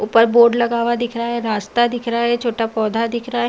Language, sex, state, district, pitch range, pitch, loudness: Hindi, female, Bihar, Saharsa, 230-240 Hz, 235 Hz, -18 LUFS